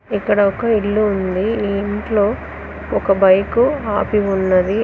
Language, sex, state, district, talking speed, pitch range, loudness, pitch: Telugu, female, Telangana, Mahabubabad, 125 wpm, 195-215 Hz, -17 LUFS, 205 Hz